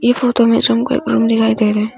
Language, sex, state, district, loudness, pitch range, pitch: Hindi, female, Arunachal Pradesh, Longding, -14 LUFS, 225-245 Hz, 235 Hz